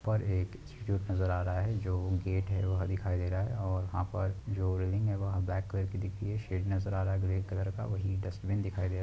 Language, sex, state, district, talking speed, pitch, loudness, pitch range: Hindi, male, Maharashtra, Pune, 270 wpm, 95 Hz, -34 LUFS, 95-100 Hz